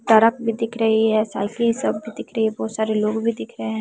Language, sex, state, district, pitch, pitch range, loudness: Hindi, female, Bihar, West Champaran, 220 Hz, 215-230 Hz, -21 LUFS